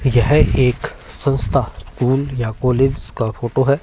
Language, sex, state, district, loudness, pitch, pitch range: Hindi, male, Punjab, Fazilka, -18 LUFS, 130 Hz, 120-140 Hz